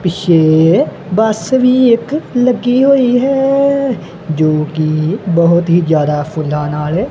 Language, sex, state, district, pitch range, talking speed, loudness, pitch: Punjabi, male, Punjab, Kapurthala, 155-250 Hz, 120 wpm, -12 LUFS, 175 Hz